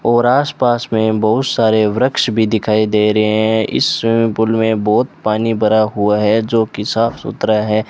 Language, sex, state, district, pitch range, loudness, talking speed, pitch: Hindi, male, Rajasthan, Bikaner, 110-115 Hz, -14 LUFS, 190 wpm, 110 Hz